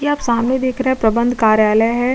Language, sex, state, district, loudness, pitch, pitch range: Hindi, female, Uttar Pradesh, Budaun, -15 LUFS, 240 Hz, 225-260 Hz